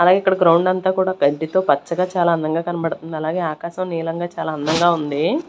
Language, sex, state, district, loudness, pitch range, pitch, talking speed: Telugu, female, Andhra Pradesh, Sri Satya Sai, -19 LUFS, 160-185 Hz, 170 Hz, 175 wpm